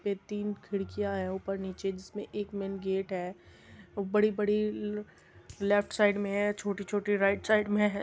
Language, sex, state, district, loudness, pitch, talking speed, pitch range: Hindi, female, Uttar Pradesh, Muzaffarnagar, -31 LUFS, 200 Hz, 155 wpm, 195-210 Hz